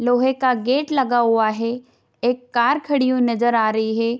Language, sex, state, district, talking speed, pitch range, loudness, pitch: Hindi, female, Bihar, Darbhanga, 200 wpm, 230-255 Hz, -19 LUFS, 245 Hz